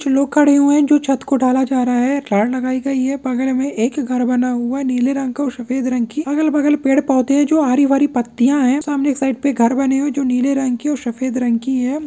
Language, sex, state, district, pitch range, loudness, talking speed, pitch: Hindi, male, Bihar, Purnia, 255-280 Hz, -16 LUFS, 270 wpm, 265 Hz